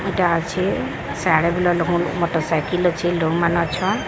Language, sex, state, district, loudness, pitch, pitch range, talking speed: Odia, female, Odisha, Sambalpur, -20 LUFS, 170 Hz, 165-180 Hz, 90 wpm